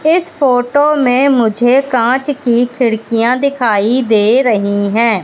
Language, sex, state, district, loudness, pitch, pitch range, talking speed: Hindi, female, Madhya Pradesh, Katni, -12 LUFS, 245 Hz, 230-275 Hz, 125 wpm